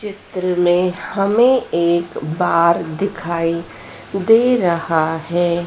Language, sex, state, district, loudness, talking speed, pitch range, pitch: Hindi, female, Madhya Pradesh, Dhar, -17 LUFS, 95 wpm, 170-195 Hz, 175 Hz